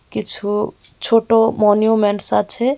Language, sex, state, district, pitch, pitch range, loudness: Bengali, female, Tripura, West Tripura, 215 Hz, 205-225 Hz, -15 LUFS